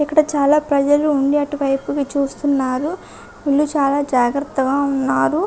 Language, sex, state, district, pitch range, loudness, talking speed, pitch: Telugu, female, Andhra Pradesh, Visakhapatnam, 275-295 Hz, -18 LUFS, 120 wpm, 285 Hz